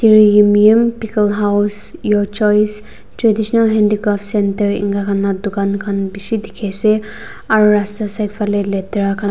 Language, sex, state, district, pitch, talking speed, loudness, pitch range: Nagamese, female, Nagaland, Dimapur, 210 Hz, 155 wpm, -15 LUFS, 200-215 Hz